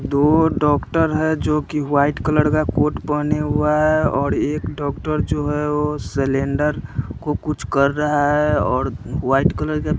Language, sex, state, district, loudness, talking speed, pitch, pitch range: Hindi, male, Bihar, West Champaran, -19 LUFS, 170 wpm, 150 Hz, 140-150 Hz